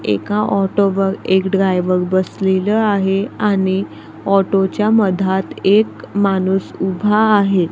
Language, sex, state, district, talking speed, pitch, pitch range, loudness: Marathi, female, Maharashtra, Gondia, 100 wpm, 195 Hz, 190-205 Hz, -16 LUFS